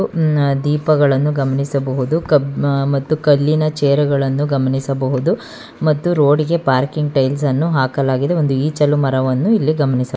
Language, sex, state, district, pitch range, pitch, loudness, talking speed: Kannada, female, Karnataka, Bangalore, 135-155 Hz, 145 Hz, -16 LUFS, 105 wpm